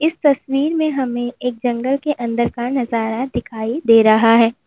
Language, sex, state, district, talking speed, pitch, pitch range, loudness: Hindi, female, Uttar Pradesh, Lalitpur, 180 wpm, 245 Hz, 230-270 Hz, -17 LUFS